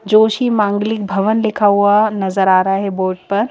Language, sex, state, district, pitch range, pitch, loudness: Hindi, female, Madhya Pradesh, Bhopal, 195-215 Hz, 205 Hz, -15 LUFS